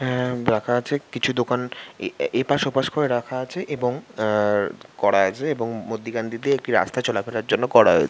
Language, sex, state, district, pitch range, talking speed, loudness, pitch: Bengali, male, West Bengal, Jhargram, 115-140 Hz, 185 wpm, -23 LUFS, 125 Hz